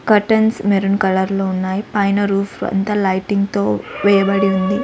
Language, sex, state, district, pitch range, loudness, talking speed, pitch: Telugu, female, Andhra Pradesh, Sri Satya Sai, 190-205 Hz, -17 LUFS, 150 wpm, 195 Hz